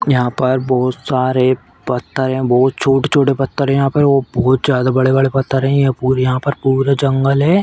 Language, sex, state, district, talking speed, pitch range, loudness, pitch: Hindi, female, Uttar Pradesh, Etah, 195 wpm, 130-140 Hz, -15 LUFS, 135 Hz